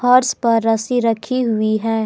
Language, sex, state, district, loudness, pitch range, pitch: Hindi, female, Jharkhand, Palamu, -17 LUFS, 220-245 Hz, 230 Hz